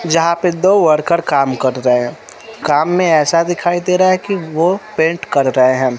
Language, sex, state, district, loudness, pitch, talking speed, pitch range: Hindi, female, Bihar, West Champaran, -14 LUFS, 165 Hz, 200 wpm, 140-175 Hz